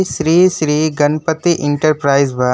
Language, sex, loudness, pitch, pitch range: Bhojpuri, male, -14 LUFS, 155 Hz, 145-160 Hz